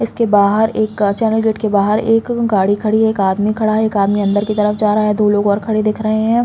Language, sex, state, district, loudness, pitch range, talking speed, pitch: Hindi, female, Uttar Pradesh, Muzaffarnagar, -15 LUFS, 205-220 Hz, 280 wpm, 215 Hz